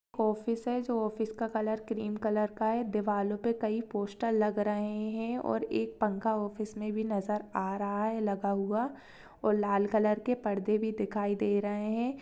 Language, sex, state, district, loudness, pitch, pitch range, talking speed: Hindi, female, Uttarakhand, Uttarkashi, -32 LUFS, 215 Hz, 205-220 Hz, 190 wpm